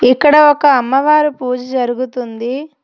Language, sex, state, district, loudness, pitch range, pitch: Telugu, female, Telangana, Hyderabad, -13 LUFS, 250-295 Hz, 265 Hz